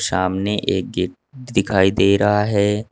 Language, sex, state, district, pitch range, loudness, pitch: Hindi, male, Uttar Pradesh, Saharanpur, 95-105 Hz, -18 LUFS, 100 Hz